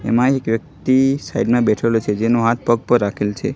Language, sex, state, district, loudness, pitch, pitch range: Gujarati, male, Gujarat, Gandhinagar, -17 LUFS, 115 Hz, 115-125 Hz